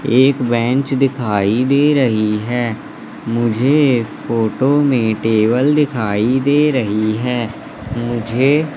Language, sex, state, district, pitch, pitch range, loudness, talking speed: Hindi, male, Madhya Pradesh, Katni, 120 Hz, 110-135 Hz, -16 LUFS, 110 wpm